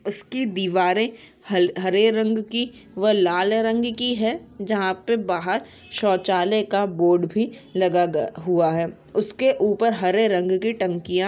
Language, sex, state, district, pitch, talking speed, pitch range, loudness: Hindi, female, Uttarakhand, Tehri Garhwal, 200 Hz, 145 wpm, 180-225 Hz, -22 LUFS